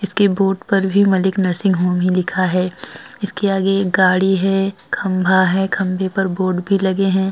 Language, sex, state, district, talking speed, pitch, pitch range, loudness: Hindi, male, Uttar Pradesh, Jyotiba Phule Nagar, 170 wpm, 190 Hz, 185-195 Hz, -17 LUFS